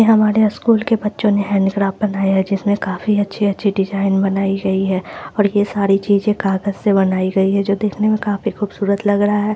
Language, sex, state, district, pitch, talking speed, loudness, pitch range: Hindi, female, Bihar, Lakhisarai, 200 Hz, 220 wpm, -17 LUFS, 195-210 Hz